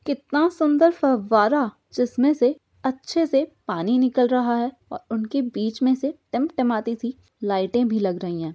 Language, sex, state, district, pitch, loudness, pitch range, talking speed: Hindi, female, Bihar, Jahanabad, 250 Hz, -22 LUFS, 225-280 Hz, 170 wpm